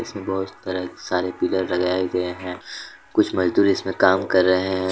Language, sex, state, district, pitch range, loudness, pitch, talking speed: Hindi, male, Jharkhand, Deoghar, 90-95 Hz, -22 LUFS, 95 Hz, 160 wpm